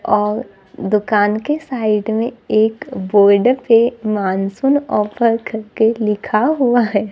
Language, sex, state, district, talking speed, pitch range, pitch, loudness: Hindi, female, Maharashtra, Gondia, 120 wpm, 210-240 Hz, 220 Hz, -16 LUFS